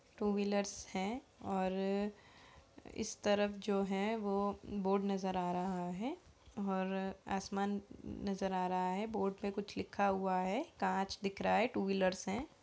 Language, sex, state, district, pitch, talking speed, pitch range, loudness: Hindi, female, Uttar Pradesh, Budaun, 195 Hz, 155 wpm, 190-205 Hz, -38 LUFS